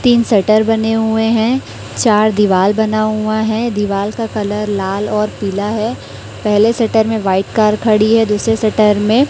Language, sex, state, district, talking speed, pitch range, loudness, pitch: Hindi, female, Chhattisgarh, Raipur, 175 wpm, 210-225 Hz, -14 LUFS, 215 Hz